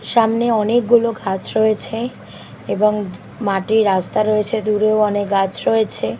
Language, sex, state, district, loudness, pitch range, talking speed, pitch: Bengali, female, Bihar, Katihar, -17 LUFS, 205-225 Hz, 115 wpm, 215 Hz